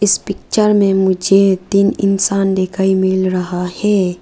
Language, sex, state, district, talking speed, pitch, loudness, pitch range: Hindi, female, Arunachal Pradesh, Lower Dibang Valley, 130 wpm, 190 Hz, -14 LUFS, 185-200 Hz